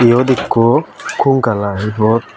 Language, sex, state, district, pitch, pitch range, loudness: Chakma, male, Tripura, Dhalai, 115 Hz, 110-125 Hz, -14 LUFS